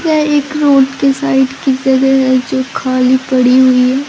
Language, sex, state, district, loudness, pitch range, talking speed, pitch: Hindi, female, Madhya Pradesh, Katni, -11 LUFS, 260-275 Hz, 190 wpm, 265 Hz